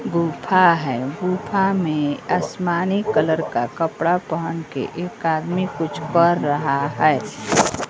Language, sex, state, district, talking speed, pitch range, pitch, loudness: Hindi, female, Bihar, West Champaran, 115 wpm, 150-180 Hz, 165 Hz, -20 LUFS